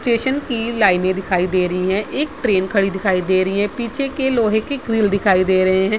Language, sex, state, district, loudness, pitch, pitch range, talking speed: Hindi, female, Bihar, Vaishali, -18 LUFS, 205 Hz, 185-235 Hz, 260 wpm